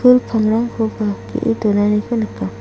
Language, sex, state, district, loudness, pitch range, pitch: Garo, female, Meghalaya, South Garo Hills, -18 LUFS, 210-230 Hz, 220 Hz